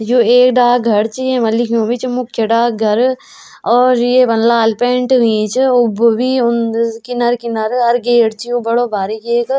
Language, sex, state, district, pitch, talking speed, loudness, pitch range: Garhwali, female, Uttarakhand, Tehri Garhwal, 240 Hz, 170 wpm, -13 LUFS, 230-250 Hz